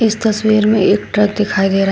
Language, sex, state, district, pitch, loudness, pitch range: Hindi, female, Uttar Pradesh, Shamli, 210 Hz, -14 LUFS, 195-215 Hz